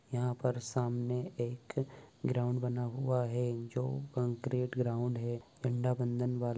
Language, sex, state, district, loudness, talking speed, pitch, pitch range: Bhojpuri, male, Bihar, Saran, -36 LUFS, 145 wpm, 125 Hz, 120-125 Hz